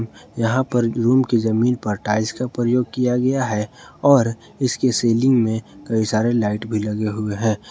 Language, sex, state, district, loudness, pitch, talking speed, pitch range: Hindi, male, Jharkhand, Ranchi, -20 LUFS, 115 Hz, 180 wpm, 110-125 Hz